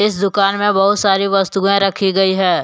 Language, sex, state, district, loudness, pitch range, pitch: Hindi, male, Jharkhand, Deoghar, -14 LUFS, 195-200 Hz, 195 Hz